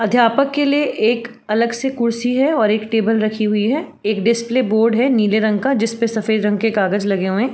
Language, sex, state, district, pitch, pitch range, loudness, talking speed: Hindi, female, Uttar Pradesh, Varanasi, 225 Hz, 215-245 Hz, -17 LUFS, 230 wpm